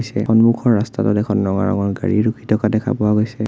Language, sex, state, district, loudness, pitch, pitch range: Assamese, male, Assam, Sonitpur, -17 LUFS, 110 Hz, 105-115 Hz